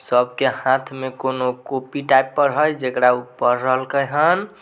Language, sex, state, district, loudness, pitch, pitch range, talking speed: Maithili, male, Bihar, Samastipur, -19 LUFS, 130 Hz, 125-140 Hz, 180 wpm